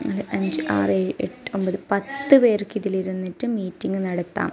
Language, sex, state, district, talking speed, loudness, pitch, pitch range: Malayalam, female, Kerala, Kasaragod, 145 wpm, -23 LUFS, 190 Hz, 175-210 Hz